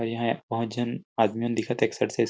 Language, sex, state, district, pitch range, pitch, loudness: Chhattisgarhi, male, Chhattisgarh, Rajnandgaon, 115-120 Hz, 115 Hz, -27 LUFS